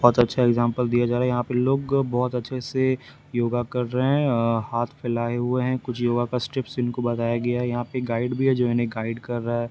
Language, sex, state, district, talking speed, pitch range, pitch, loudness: Hindi, male, Bihar, Patna, 245 wpm, 120-125 Hz, 120 Hz, -24 LUFS